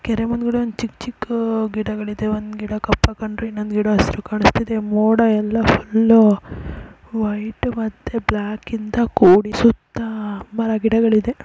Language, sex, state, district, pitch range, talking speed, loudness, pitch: Kannada, female, Karnataka, Chamarajanagar, 215-230 Hz, 120 wpm, -19 LUFS, 220 Hz